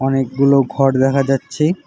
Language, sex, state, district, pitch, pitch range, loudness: Bengali, male, West Bengal, Alipurduar, 135 Hz, 135-140 Hz, -15 LUFS